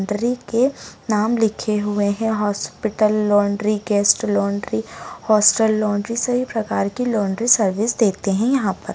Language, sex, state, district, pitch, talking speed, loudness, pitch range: Hindi, female, Bihar, Begusarai, 215 Hz, 140 wpm, -19 LUFS, 205-225 Hz